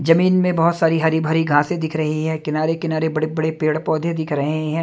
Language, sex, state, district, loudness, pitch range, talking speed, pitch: Hindi, male, Haryana, Jhajjar, -19 LUFS, 155-165 Hz, 235 wpm, 160 Hz